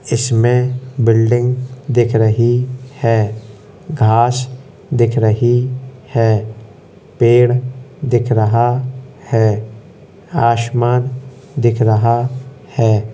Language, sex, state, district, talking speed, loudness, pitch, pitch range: Hindi, male, Uttar Pradesh, Hamirpur, 80 wpm, -15 LUFS, 120 Hz, 115-130 Hz